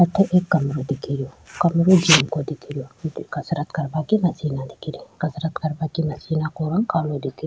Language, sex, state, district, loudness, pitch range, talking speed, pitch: Rajasthani, female, Rajasthan, Churu, -22 LUFS, 145-170 Hz, 200 wpm, 155 Hz